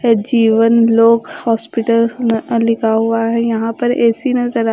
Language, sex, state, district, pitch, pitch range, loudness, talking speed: Hindi, female, Bihar, Katihar, 230 Hz, 225-235 Hz, -14 LUFS, 150 wpm